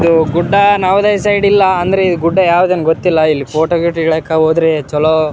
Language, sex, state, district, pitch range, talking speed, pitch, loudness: Kannada, male, Karnataka, Raichur, 160-190 Hz, 190 wpm, 170 Hz, -12 LUFS